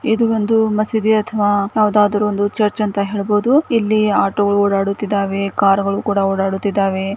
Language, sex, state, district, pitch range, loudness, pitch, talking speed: Kannada, female, Karnataka, Gulbarga, 200-215 Hz, -16 LUFS, 205 Hz, 140 wpm